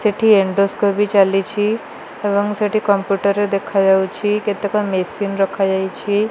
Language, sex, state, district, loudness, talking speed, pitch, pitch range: Odia, female, Odisha, Malkangiri, -17 LUFS, 105 wpm, 200 Hz, 195-210 Hz